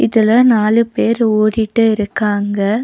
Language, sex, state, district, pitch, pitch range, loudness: Tamil, female, Tamil Nadu, Nilgiris, 220 Hz, 210-230 Hz, -14 LUFS